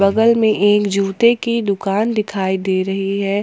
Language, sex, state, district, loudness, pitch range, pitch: Hindi, female, Jharkhand, Ranchi, -16 LUFS, 195-220 Hz, 200 Hz